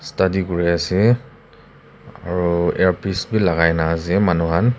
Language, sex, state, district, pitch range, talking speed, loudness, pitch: Nagamese, male, Nagaland, Kohima, 85-100 Hz, 140 wpm, -18 LUFS, 90 Hz